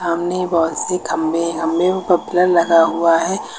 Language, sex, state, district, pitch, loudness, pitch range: Hindi, female, Uttar Pradesh, Lucknow, 170 Hz, -17 LUFS, 165-180 Hz